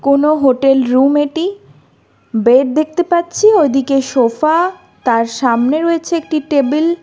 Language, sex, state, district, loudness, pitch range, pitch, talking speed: Bengali, female, Karnataka, Bangalore, -13 LUFS, 265-330 Hz, 290 Hz, 130 wpm